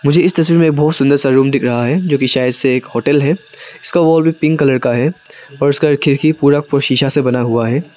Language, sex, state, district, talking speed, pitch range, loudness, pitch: Hindi, male, Arunachal Pradesh, Papum Pare, 255 wpm, 130-155 Hz, -13 LUFS, 140 Hz